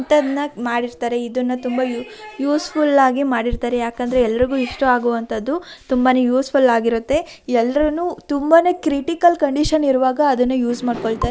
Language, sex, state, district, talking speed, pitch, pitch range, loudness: Kannada, female, Karnataka, Shimoga, 125 wpm, 260 Hz, 245-295 Hz, -18 LUFS